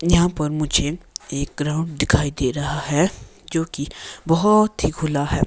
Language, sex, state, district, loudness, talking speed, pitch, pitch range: Hindi, male, Himachal Pradesh, Shimla, -21 LUFS, 165 wpm, 150 Hz, 145-165 Hz